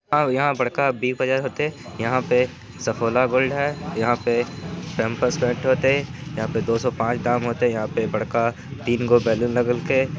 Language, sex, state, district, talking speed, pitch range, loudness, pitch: Hindi, male, Bihar, Jamui, 195 wpm, 120-135 Hz, -22 LUFS, 125 Hz